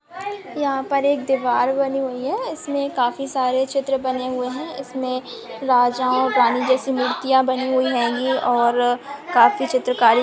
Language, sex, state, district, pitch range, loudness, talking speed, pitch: Hindi, female, Maharashtra, Aurangabad, 250-275 Hz, -20 LUFS, 165 wpm, 260 Hz